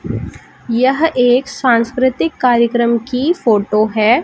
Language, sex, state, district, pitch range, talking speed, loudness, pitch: Hindi, female, Madhya Pradesh, Katni, 230-260 Hz, 100 wpm, -14 LUFS, 240 Hz